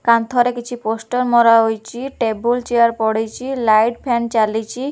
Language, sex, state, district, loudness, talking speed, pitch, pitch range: Odia, female, Odisha, Khordha, -17 LUFS, 120 wpm, 235 Hz, 225-245 Hz